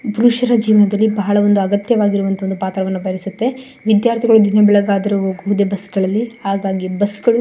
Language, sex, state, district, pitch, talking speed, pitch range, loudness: Kannada, female, Karnataka, Shimoga, 205 Hz, 130 wpm, 195-220 Hz, -15 LUFS